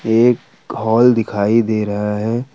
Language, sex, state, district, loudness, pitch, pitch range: Hindi, male, Jharkhand, Ranchi, -16 LUFS, 110 Hz, 105-120 Hz